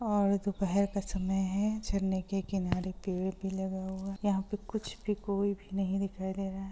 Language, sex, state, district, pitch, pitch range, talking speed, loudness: Hindi, female, Bihar, Gopalganj, 195 Hz, 190-200 Hz, 205 wpm, -33 LUFS